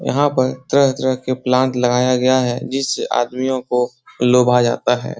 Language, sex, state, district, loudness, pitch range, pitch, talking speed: Hindi, male, Bihar, Jahanabad, -17 LUFS, 125-130 Hz, 130 Hz, 160 wpm